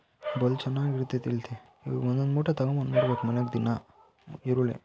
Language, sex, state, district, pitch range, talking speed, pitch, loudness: Kannada, male, Karnataka, Mysore, 125-135 Hz, 150 wpm, 125 Hz, -29 LUFS